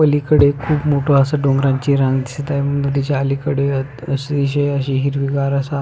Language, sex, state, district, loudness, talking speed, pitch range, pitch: Marathi, male, Maharashtra, Pune, -17 LUFS, 135 wpm, 135-145 Hz, 140 Hz